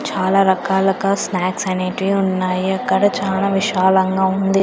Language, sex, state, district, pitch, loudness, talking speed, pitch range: Telugu, female, Andhra Pradesh, Sri Satya Sai, 190 Hz, -17 LUFS, 115 wpm, 185-195 Hz